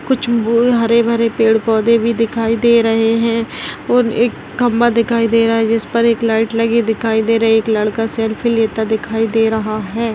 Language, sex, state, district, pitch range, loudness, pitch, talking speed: Hindi, female, Maharashtra, Aurangabad, 225-235 Hz, -15 LUFS, 230 Hz, 205 wpm